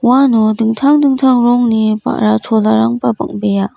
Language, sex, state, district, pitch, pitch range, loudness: Garo, female, Meghalaya, West Garo Hills, 225 Hz, 210-245 Hz, -12 LUFS